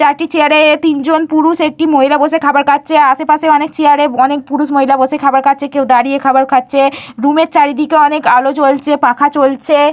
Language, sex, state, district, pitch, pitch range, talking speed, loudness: Bengali, female, Jharkhand, Jamtara, 290 Hz, 275-305 Hz, 175 wpm, -10 LUFS